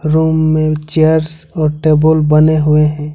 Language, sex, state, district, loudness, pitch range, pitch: Hindi, male, Jharkhand, Ranchi, -12 LUFS, 150-160 Hz, 155 Hz